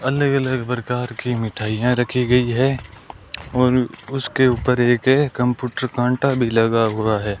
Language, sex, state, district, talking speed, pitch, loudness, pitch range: Hindi, male, Rajasthan, Bikaner, 145 wpm, 125 Hz, -19 LUFS, 115-130 Hz